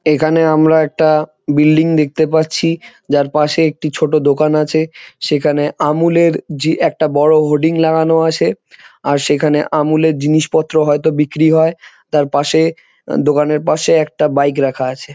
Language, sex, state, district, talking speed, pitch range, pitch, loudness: Bengali, male, West Bengal, Jhargram, 145 wpm, 150-160 Hz, 155 Hz, -14 LUFS